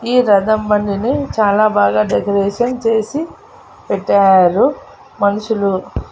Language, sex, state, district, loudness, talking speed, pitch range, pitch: Telugu, female, Andhra Pradesh, Annamaya, -15 LUFS, 90 wpm, 200-225 Hz, 205 Hz